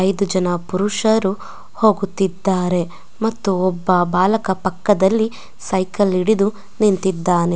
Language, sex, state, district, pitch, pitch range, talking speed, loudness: Kannada, female, Karnataka, Belgaum, 190 Hz, 185-210 Hz, 85 wpm, -18 LUFS